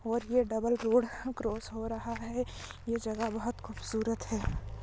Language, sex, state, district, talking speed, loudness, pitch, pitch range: Hindi, female, Goa, North and South Goa, 160 wpm, -34 LUFS, 230 Hz, 225-240 Hz